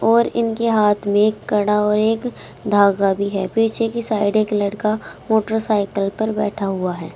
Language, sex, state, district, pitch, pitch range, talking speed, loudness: Hindi, female, Uttar Pradesh, Saharanpur, 210 Hz, 200-220 Hz, 165 wpm, -19 LUFS